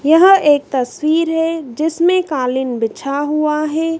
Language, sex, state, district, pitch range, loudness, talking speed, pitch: Hindi, female, Madhya Pradesh, Dhar, 275-325 Hz, -15 LUFS, 135 wpm, 305 Hz